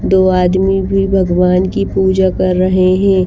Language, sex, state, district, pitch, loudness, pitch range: Hindi, female, Bihar, Kaimur, 185 Hz, -12 LUFS, 185-190 Hz